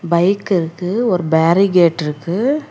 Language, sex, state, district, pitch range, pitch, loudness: Tamil, female, Karnataka, Bangalore, 165-200 Hz, 180 Hz, -16 LUFS